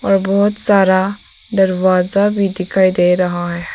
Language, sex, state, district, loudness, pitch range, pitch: Hindi, female, Arunachal Pradesh, Papum Pare, -14 LUFS, 180-200 Hz, 190 Hz